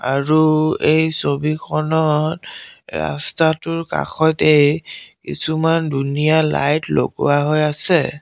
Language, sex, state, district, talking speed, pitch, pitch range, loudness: Assamese, male, Assam, Sonitpur, 80 wpm, 155 Hz, 145-160 Hz, -17 LUFS